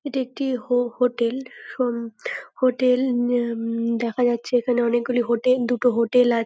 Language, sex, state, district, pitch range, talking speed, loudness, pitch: Bengali, female, West Bengal, North 24 Parganas, 235-250 Hz, 160 wpm, -22 LUFS, 245 Hz